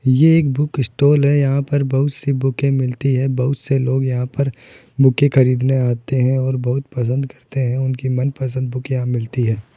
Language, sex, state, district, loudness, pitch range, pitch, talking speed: Hindi, male, Rajasthan, Jaipur, -18 LUFS, 125-140 Hz, 130 Hz, 200 wpm